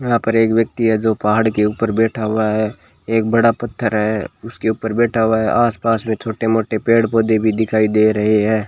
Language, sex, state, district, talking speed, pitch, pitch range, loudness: Hindi, male, Rajasthan, Bikaner, 230 wpm, 110 Hz, 110-115 Hz, -17 LUFS